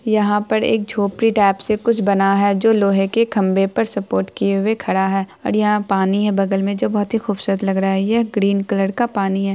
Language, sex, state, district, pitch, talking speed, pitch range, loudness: Hindi, female, Bihar, Araria, 200 Hz, 230 wpm, 195-215 Hz, -18 LUFS